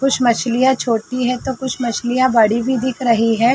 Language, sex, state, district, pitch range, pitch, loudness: Hindi, female, Uttar Pradesh, Jalaun, 235-260 Hz, 250 Hz, -17 LUFS